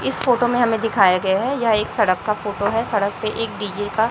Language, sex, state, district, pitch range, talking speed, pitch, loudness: Hindi, female, Chhattisgarh, Raipur, 200-225 Hz, 260 wpm, 215 Hz, -19 LUFS